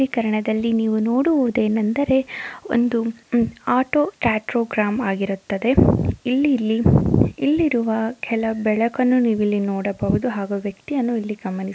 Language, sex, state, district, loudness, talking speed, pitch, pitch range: Kannada, female, Karnataka, Dakshina Kannada, -20 LUFS, 100 wpm, 230 Hz, 215-250 Hz